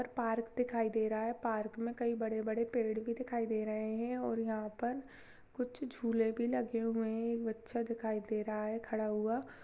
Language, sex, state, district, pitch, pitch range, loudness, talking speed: Hindi, female, Chhattisgarh, Jashpur, 230 Hz, 220-235 Hz, -37 LUFS, 205 wpm